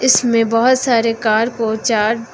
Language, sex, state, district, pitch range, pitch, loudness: Hindi, female, Uttar Pradesh, Lucknow, 220-240 Hz, 230 Hz, -15 LUFS